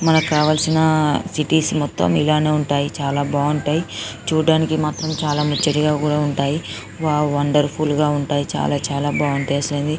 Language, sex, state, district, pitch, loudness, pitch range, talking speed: Telugu, female, Telangana, Karimnagar, 150 Hz, -19 LUFS, 145-155 Hz, 110 wpm